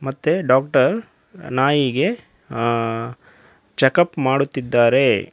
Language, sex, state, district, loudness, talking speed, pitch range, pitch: Kannada, male, Karnataka, Koppal, -18 LUFS, 80 wpm, 120-145 Hz, 135 Hz